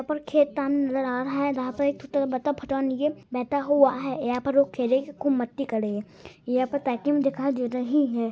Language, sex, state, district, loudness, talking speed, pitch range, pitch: Hindi, male, Bihar, East Champaran, -25 LUFS, 195 wpm, 250-285 Hz, 270 Hz